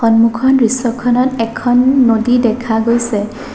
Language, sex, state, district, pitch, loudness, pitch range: Assamese, female, Assam, Sonitpur, 235 Hz, -13 LUFS, 230-250 Hz